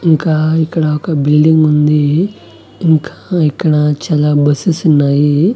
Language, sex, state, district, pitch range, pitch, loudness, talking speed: Telugu, male, Andhra Pradesh, Annamaya, 150-160 Hz, 155 Hz, -12 LUFS, 110 wpm